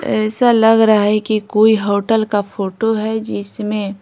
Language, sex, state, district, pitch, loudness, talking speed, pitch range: Hindi, female, Bihar, Patna, 215 Hz, -15 LUFS, 165 wpm, 205-220 Hz